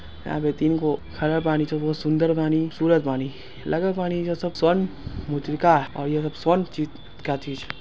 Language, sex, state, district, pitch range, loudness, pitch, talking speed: Angika, male, Bihar, Samastipur, 145-165 Hz, -24 LUFS, 155 Hz, 175 wpm